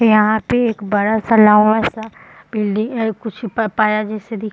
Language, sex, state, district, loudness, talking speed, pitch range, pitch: Hindi, female, Bihar, Madhepura, -16 LUFS, 170 wpm, 215-225 Hz, 220 Hz